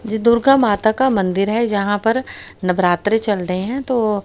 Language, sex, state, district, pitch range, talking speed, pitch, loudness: Hindi, female, Haryana, Rohtak, 200-235 Hz, 185 wpm, 220 Hz, -17 LUFS